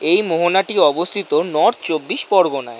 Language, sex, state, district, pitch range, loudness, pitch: Bengali, male, West Bengal, North 24 Parganas, 155-190 Hz, -17 LUFS, 170 Hz